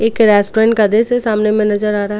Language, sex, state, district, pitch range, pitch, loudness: Hindi, female, Goa, North and South Goa, 210-225 Hz, 215 Hz, -13 LUFS